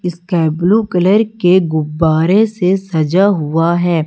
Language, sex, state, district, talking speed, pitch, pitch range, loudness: Hindi, female, Madhya Pradesh, Umaria, 130 wpm, 175 Hz, 165-190 Hz, -13 LUFS